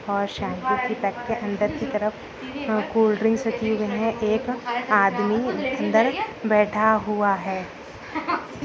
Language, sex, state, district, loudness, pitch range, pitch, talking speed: Hindi, female, Uttar Pradesh, Budaun, -23 LUFS, 210-235 Hz, 220 Hz, 125 wpm